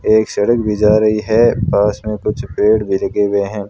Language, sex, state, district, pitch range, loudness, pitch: Hindi, male, Rajasthan, Bikaner, 105-110 Hz, -15 LUFS, 105 Hz